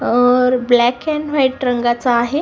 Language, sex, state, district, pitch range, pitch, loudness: Marathi, female, Maharashtra, Sindhudurg, 240-265 Hz, 250 Hz, -15 LUFS